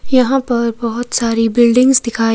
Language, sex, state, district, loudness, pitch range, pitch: Hindi, female, Himachal Pradesh, Shimla, -14 LUFS, 230-255 Hz, 235 Hz